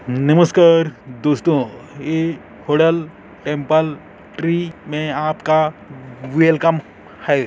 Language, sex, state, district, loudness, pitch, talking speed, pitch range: Chhattisgarhi, male, Chhattisgarh, Korba, -17 LUFS, 155 Hz, 105 wpm, 140-165 Hz